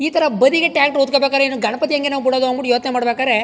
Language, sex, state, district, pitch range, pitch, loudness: Kannada, male, Karnataka, Chamarajanagar, 255-285 Hz, 275 Hz, -16 LUFS